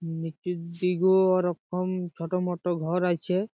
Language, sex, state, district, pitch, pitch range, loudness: Bengali, male, West Bengal, Jhargram, 180 Hz, 170-185 Hz, -27 LUFS